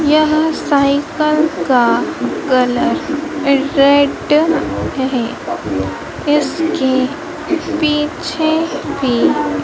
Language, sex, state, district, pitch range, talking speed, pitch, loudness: Hindi, female, Madhya Pradesh, Dhar, 275-315 Hz, 55 wpm, 300 Hz, -15 LUFS